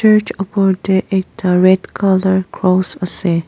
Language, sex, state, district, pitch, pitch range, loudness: Nagamese, female, Nagaland, Dimapur, 190 Hz, 185-195 Hz, -15 LUFS